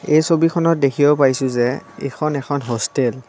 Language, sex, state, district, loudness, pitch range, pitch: Assamese, female, Assam, Kamrup Metropolitan, -18 LUFS, 130-155 Hz, 140 Hz